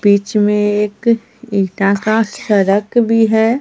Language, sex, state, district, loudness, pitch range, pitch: Hindi, female, Bihar, Katihar, -14 LUFS, 200-225 Hz, 210 Hz